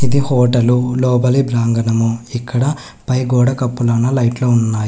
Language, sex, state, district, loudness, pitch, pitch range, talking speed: Telugu, male, Telangana, Hyderabad, -15 LUFS, 125 Hz, 115-130 Hz, 110 wpm